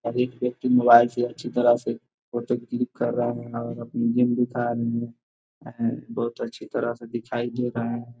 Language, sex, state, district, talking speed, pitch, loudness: Hindi, male, Bihar, Gopalganj, 155 wpm, 120 Hz, -25 LUFS